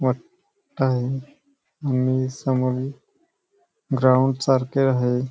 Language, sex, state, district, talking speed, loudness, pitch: Marathi, male, Maharashtra, Nagpur, 80 wpm, -22 LUFS, 135 Hz